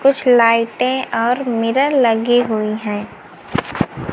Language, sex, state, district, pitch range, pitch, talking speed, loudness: Hindi, female, Madhya Pradesh, Umaria, 230-255 Hz, 235 Hz, 100 wpm, -16 LUFS